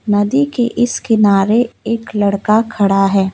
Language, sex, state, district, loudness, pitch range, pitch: Hindi, female, West Bengal, Alipurduar, -14 LUFS, 200-230 Hz, 215 Hz